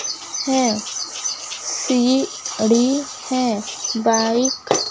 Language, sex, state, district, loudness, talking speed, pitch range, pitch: Hindi, female, Maharashtra, Gondia, -20 LUFS, 60 wpm, 230-265 Hz, 250 Hz